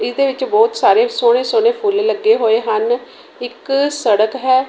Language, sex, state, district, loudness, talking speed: Punjabi, female, Punjab, Kapurthala, -15 LUFS, 165 wpm